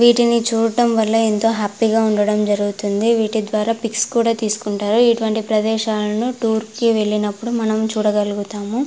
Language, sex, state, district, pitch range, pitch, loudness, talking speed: Telugu, female, Andhra Pradesh, Anantapur, 210-230 Hz, 220 Hz, -18 LUFS, 140 wpm